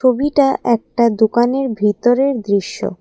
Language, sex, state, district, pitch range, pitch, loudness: Bengali, female, Assam, Kamrup Metropolitan, 220-270 Hz, 240 Hz, -16 LUFS